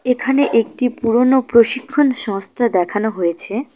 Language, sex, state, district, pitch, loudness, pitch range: Bengali, female, West Bengal, Cooch Behar, 240 Hz, -15 LUFS, 215-260 Hz